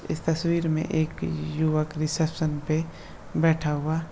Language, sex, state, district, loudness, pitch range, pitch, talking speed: Hindi, male, Bihar, Darbhanga, -26 LUFS, 155-160 Hz, 155 Hz, 145 wpm